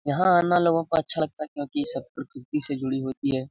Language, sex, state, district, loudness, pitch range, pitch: Hindi, male, Bihar, Lakhisarai, -25 LUFS, 135-165 Hz, 145 Hz